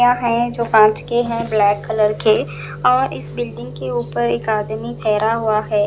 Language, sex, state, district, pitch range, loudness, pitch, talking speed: Hindi, male, Punjab, Fazilka, 155-230 Hz, -18 LUFS, 215 Hz, 185 wpm